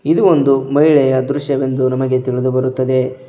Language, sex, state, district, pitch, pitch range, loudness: Kannada, male, Karnataka, Koppal, 130 Hz, 130-140 Hz, -14 LUFS